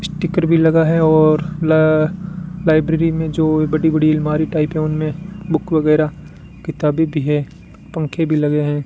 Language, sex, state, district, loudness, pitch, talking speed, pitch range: Hindi, male, Rajasthan, Bikaner, -16 LUFS, 160 Hz, 165 wpm, 155-165 Hz